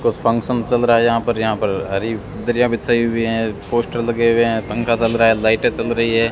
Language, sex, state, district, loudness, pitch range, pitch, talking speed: Hindi, male, Rajasthan, Bikaner, -17 LUFS, 115-120 Hz, 115 Hz, 245 wpm